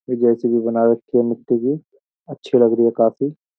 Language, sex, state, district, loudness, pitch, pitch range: Hindi, male, Uttar Pradesh, Jyotiba Phule Nagar, -18 LUFS, 120 Hz, 115-125 Hz